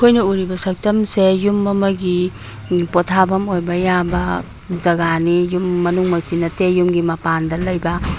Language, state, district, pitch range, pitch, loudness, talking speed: Manipuri, Manipur, Imphal West, 170-190 Hz, 180 Hz, -17 LUFS, 130 wpm